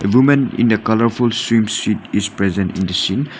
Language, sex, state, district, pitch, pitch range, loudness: English, male, Nagaland, Dimapur, 110 Hz, 100-120 Hz, -16 LUFS